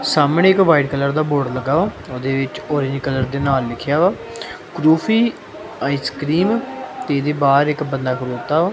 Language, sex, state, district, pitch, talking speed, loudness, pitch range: Punjabi, male, Punjab, Kapurthala, 145 Hz, 165 wpm, -18 LUFS, 135-165 Hz